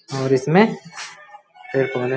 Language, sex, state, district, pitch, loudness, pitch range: Hindi, male, Bihar, Muzaffarpur, 150 Hz, -19 LUFS, 135-200 Hz